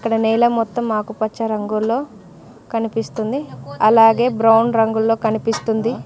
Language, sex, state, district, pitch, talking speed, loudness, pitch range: Telugu, female, Telangana, Mahabubabad, 225 Hz, 100 wpm, -17 LUFS, 220-230 Hz